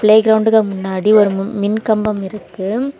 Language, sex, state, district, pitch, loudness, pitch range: Tamil, female, Tamil Nadu, Kanyakumari, 215 Hz, -15 LUFS, 195-220 Hz